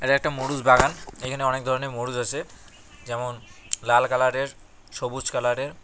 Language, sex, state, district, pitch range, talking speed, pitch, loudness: Bengali, male, West Bengal, Cooch Behar, 120-130 Hz, 145 wpm, 125 Hz, -24 LUFS